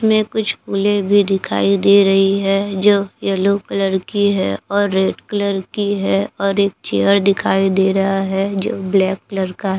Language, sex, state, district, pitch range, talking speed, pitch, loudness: Hindi, female, Bihar, Katihar, 195-200 Hz, 180 wpm, 195 Hz, -16 LUFS